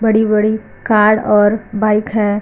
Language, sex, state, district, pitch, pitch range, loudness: Hindi, female, Uttar Pradesh, Lucknow, 215 Hz, 210-220 Hz, -14 LUFS